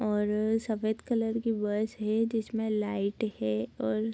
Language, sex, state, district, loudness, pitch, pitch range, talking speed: Hindi, female, Bihar, Darbhanga, -30 LUFS, 215 Hz, 205-225 Hz, 160 wpm